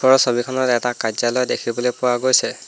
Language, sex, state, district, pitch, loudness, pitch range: Assamese, male, Assam, Hailakandi, 125 Hz, -19 LUFS, 120-130 Hz